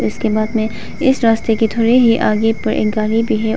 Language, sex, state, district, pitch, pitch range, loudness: Hindi, female, Arunachal Pradesh, Papum Pare, 225 Hz, 215-230 Hz, -15 LUFS